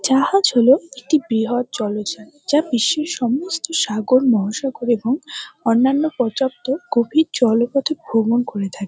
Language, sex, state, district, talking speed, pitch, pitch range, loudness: Bengali, female, West Bengal, North 24 Parganas, 120 wpm, 260 Hz, 235-295 Hz, -18 LUFS